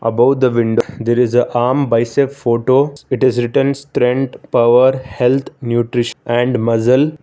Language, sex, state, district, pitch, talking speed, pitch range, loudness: English, male, Karnataka, Bangalore, 125 Hz, 150 wpm, 120-135 Hz, -15 LUFS